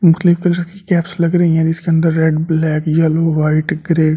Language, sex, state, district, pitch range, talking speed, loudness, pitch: Hindi, male, Delhi, New Delhi, 160-175 Hz, 215 wpm, -15 LUFS, 165 Hz